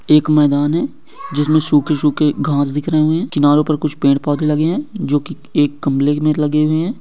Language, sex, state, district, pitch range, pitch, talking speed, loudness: Hindi, male, Uttar Pradesh, Etah, 145-155 Hz, 150 Hz, 205 wpm, -16 LUFS